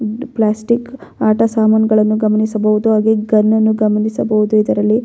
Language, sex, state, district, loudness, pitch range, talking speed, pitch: Kannada, female, Karnataka, Bellary, -14 LUFS, 215-220 Hz, 105 wpm, 220 Hz